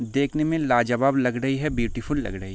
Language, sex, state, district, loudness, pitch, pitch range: Hindi, male, Bihar, Sitamarhi, -23 LUFS, 130 Hz, 120-140 Hz